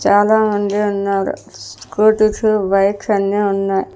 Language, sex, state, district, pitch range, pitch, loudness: Telugu, female, Andhra Pradesh, Sri Satya Sai, 195-215 Hz, 205 Hz, -15 LUFS